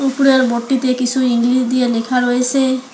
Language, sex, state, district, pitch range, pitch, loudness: Bengali, male, West Bengal, Alipurduar, 245-260 Hz, 255 Hz, -15 LUFS